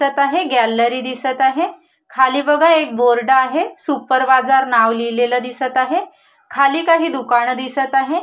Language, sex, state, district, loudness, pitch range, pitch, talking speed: Marathi, female, Maharashtra, Solapur, -16 LUFS, 250-315 Hz, 265 Hz, 155 wpm